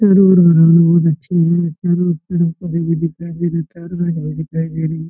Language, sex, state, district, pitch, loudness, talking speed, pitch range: Hindi, male, Jharkhand, Jamtara, 170 Hz, -15 LUFS, 45 wpm, 165-175 Hz